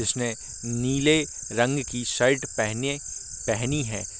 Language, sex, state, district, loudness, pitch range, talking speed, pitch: Hindi, male, Bihar, Darbhanga, -25 LUFS, 115-140 Hz, 115 wpm, 120 Hz